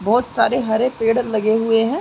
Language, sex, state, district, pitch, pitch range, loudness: Hindi, female, Uttar Pradesh, Gorakhpur, 230 Hz, 220-245 Hz, -18 LUFS